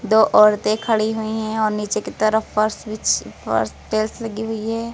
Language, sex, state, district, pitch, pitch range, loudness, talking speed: Hindi, female, Uttar Pradesh, Lucknow, 220 Hz, 215-220 Hz, -20 LUFS, 170 wpm